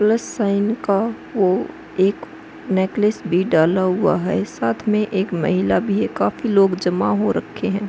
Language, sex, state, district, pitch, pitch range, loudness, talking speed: Hindi, female, Uttar Pradesh, Hamirpur, 195 Hz, 185-210 Hz, -19 LUFS, 165 wpm